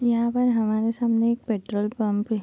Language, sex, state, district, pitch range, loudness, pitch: Hindi, female, Bihar, Kishanganj, 215-235 Hz, -24 LUFS, 225 Hz